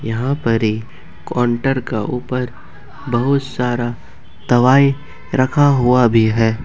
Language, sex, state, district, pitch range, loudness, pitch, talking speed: Hindi, male, Jharkhand, Ranchi, 115-135 Hz, -16 LUFS, 125 Hz, 100 wpm